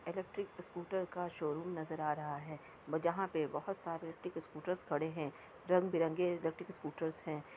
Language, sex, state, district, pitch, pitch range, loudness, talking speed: Hindi, female, Chhattisgarh, Kabirdham, 165 Hz, 155-180 Hz, -40 LUFS, 160 wpm